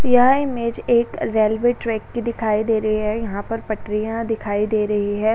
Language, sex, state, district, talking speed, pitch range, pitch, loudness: Hindi, female, Uttar Pradesh, Jalaun, 190 wpm, 215-235 Hz, 220 Hz, -20 LUFS